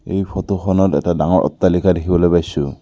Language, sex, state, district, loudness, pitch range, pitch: Assamese, male, Assam, Kamrup Metropolitan, -16 LUFS, 85-95 Hz, 90 Hz